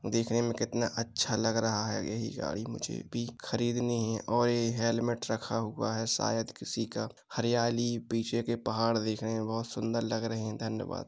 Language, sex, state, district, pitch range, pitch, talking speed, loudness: Hindi, male, Uttar Pradesh, Jalaun, 110-120 Hz, 115 Hz, 185 wpm, -32 LUFS